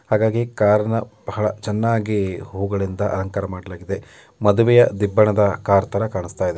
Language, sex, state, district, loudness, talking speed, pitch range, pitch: Kannada, male, Karnataka, Mysore, -20 LUFS, 120 wpm, 100-110 Hz, 105 Hz